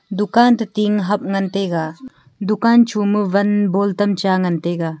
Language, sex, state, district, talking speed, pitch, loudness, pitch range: Wancho, female, Arunachal Pradesh, Longding, 145 wpm, 200 Hz, -17 LUFS, 185-210 Hz